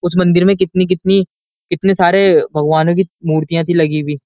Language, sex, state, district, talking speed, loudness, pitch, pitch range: Hindi, male, Uttar Pradesh, Jyotiba Phule Nagar, 185 wpm, -13 LUFS, 175 Hz, 155-190 Hz